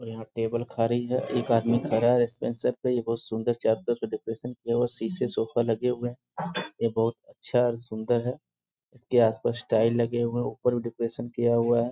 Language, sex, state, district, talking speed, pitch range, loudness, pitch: Hindi, male, Bihar, Sitamarhi, 215 wpm, 115-120 Hz, -27 LUFS, 120 Hz